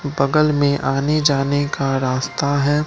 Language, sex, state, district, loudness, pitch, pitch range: Hindi, male, Bihar, Katihar, -18 LUFS, 145 Hz, 140-150 Hz